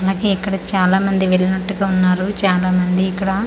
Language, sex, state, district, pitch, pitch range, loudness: Telugu, female, Andhra Pradesh, Manyam, 190 Hz, 185-195 Hz, -17 LUFS